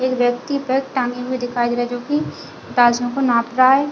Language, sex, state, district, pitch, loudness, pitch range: Hindi, female, Chhattisgarh, Bilaspur, 250 Hz, -19 LUFS, 245-265 Hz